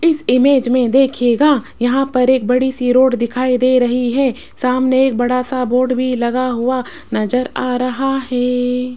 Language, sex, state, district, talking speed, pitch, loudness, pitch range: Hindi, female, Rajasthan, Jaipur, 160 wpm, 255 Hz, -15 LUFS, 250-260 Hz